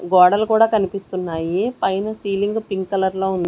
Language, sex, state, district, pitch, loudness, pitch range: Telugu, female, Andhra Pradesh, Sri Satya Sai, 195 Hz, -19 LUFS, 185-210 Hz